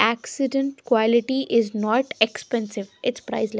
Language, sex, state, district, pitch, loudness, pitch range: English, female, Haryana, Jhajjar, 230 Hz, -23 LUFS, 220-260 Hz